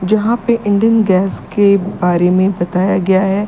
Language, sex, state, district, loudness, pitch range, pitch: Hindi, female, Uttar Pradesh, Lalitpur, -13 LUFS, 185-210 Hz, 195 Hz